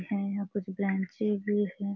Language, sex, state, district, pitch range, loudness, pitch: Hindi, female, Bihar, Jamui, 195-205 Hz, -31 LUFS, 200 Hz